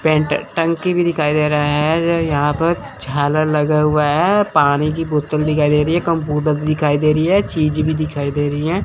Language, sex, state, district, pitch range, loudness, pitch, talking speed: Hindi, male, Chandigarh, Chandigarh, 150-165 Hz, -16 LUFS, 155 Hz, 210 wpm